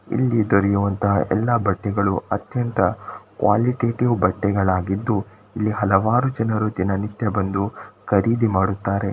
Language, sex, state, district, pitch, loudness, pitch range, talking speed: Kannada, male, Karnataka, Shimoga, 100 Hz, -21 LUFS, 100-115 Hz, 90 wpm